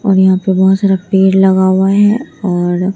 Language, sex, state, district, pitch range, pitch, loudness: Hindi, female, Bihar, Katihar, 190-195 Hz, 190 Hz, -11 LUFS